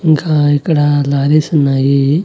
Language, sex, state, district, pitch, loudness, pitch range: Telugu, male, Andhra Pradesh, Annamaya, 145 Hz, -12 LUFS, 140-155 Hz